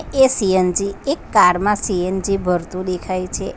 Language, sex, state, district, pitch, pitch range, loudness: Gujarati, female, Gujarat, Valsad, 190 Hz, 180-200 Hz, -18 LUFS